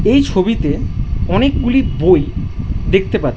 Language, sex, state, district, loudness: Bengali, male, West Bengal, Jhargram, -15 LUFS